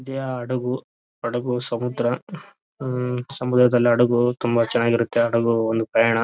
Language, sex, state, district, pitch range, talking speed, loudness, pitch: Kannada, male, Karnataka, Bellary, 115-125 Hz, 115 wpm, -21 LUFS, 120 Hz